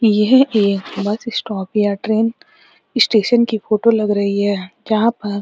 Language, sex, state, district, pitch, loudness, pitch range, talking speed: Hindi, female, Uttarakhand, Uttarkashi, 215 Hz, -17 LUFS, 205-230 Hz, 165 wpm